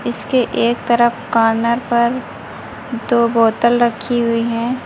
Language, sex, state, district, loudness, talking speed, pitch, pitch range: Hindi, female, Uttar Pradesh, Lucknow, -16 LUFS, 125 wpm, 235 Hz, 230-240 Hz